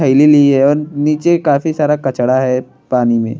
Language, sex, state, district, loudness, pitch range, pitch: Bhojpuri, male, Uttar Pradesh, Deoria, -13 LUFS, 130-150 Hz, 140 Hz